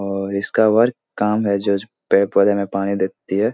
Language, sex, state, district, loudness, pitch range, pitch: Hindi, male, Bihar, Supaul, -18 LUFS, 100-105 Hz, 100 Hz